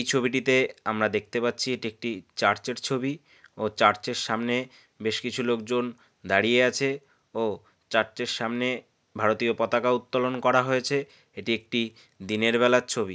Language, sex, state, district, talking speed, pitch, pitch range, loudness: Bengali, male, West Bengal, North 24 Parganas, 135 wpm, 120 Hz, 110-125 Hz, -26 LUFS